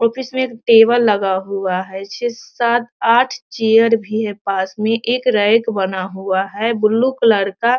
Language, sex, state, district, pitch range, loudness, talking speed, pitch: Hindi, female, Bihar, Sitamarhi, 195-235 Hz, -16 LUFS, 200 wpm, 225 Hz